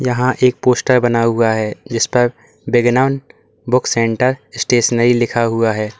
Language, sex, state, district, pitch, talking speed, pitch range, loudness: Hindi, male, Uttar Pradesh, Lalitpur, 120 Hz, 150 wpm, 115-125 Hz, -15 LUFS